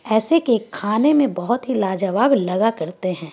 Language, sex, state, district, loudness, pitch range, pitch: Hindi, female, Bihar, Gaya, -19 LUFS, 185-255 Hz, 220 Hz